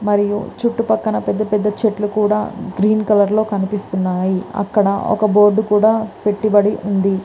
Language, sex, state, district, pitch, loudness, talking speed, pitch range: Telugu, female, Andhra Pradesh, Visakhapatnam, 210 Hz, -16 LUFS, 130 wpm, 200-215 Hz